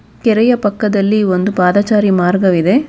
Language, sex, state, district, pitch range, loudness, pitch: Kannada, female, Karnataka, Bangalore, 185-215 Hz, -13 LUFS, 200 Hz